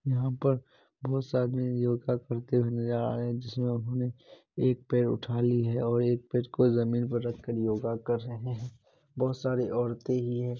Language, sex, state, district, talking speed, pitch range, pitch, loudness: Hindi, male, Bihar, Kishanganj, 200 wpm, 120-125 Hz, 120 Hz, -30 LUFS